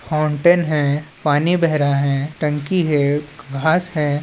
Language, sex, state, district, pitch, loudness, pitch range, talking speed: Chhattisgarhi, male, Chhattisgarh, Balrampur, 150 Hz, -18 LUFS, 145-160 Hz, 140 wpm